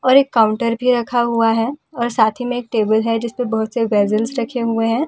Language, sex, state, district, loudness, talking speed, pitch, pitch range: Hindi, female, Delhi, New Delhi, -17 LUFS, 270 wpm, 230 Hz, 225-245 Hz